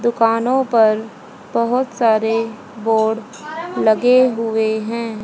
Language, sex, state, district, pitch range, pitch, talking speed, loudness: Hindi, female, Haryana, Jhajjar, 220-250 Hz, 230 Hz, 90 wpm, -17 LUFS